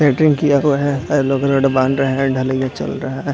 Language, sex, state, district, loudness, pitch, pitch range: Hindi, male, Chhattisgarh, Bilaspur, -16 LUFS, 135 Hz, 130-145 Hz